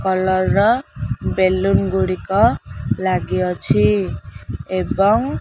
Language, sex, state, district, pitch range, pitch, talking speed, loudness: Odia, female, Odisha, Khordha, 115-195 Hz, 185 Hz, 80 wpm, -18 LUFS